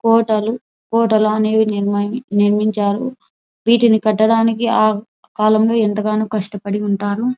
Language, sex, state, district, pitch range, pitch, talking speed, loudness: Telugu, female, Andhra Pradesh, Anantapur, 210-230 Hz, 215 Hz, 75 wpm, -16 LUFS